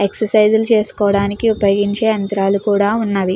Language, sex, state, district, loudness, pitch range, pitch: Telugu, female, Andhra Pradesh, Chittoor, -15 LUFS, 200-220 Hz, 205 Hz